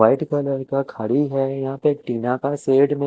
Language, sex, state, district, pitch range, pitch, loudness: Hindi, male, Chandigarh, Chandigarh, 135-145 Hz, 135 Hz, -21 LUFS